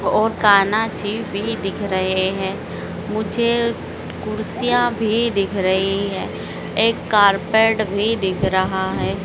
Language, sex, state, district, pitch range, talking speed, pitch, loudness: Hindi, female, Madhya Pradesh, Dhar, 195-225 Hz, 125 wpm, 205 Hz, -19 LUFS